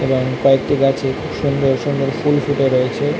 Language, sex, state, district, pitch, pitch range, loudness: Bengali, male, West Bengal, North 24 Parganas, 135 Hz, 135-145 Hz, -17 LUFS